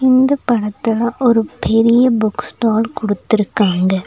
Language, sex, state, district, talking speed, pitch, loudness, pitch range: Tamil, female, Tamil Nadu, Nilgiris, 105 wpm, 225 Hz, -15 LUFS, 205-240 Hz